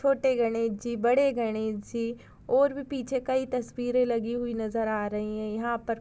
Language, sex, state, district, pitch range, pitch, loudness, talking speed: Hindi, female, Goa, North and South Goa, 225-255 Hz, 235 Hz, -28 LUFS, 170 wpm